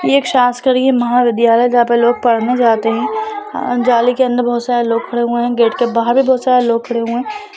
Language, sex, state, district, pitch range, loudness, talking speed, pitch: Hindi, female, Bihar, Lakhisarai, 235-255 Hz, -14 LUFS, 230 wpm, 245 Hz